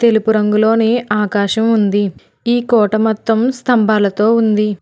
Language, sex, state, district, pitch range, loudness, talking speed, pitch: Telugu, female, Telangana, Hyderabad, 210-230 Hz, -14 LUFS, 110 wpm, 220 Hz